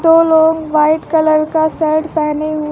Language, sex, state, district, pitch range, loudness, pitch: Hindi, female, Uttar Pradesh, Lucknow, 310-320 Hz, -13 LUFS, 315 Hz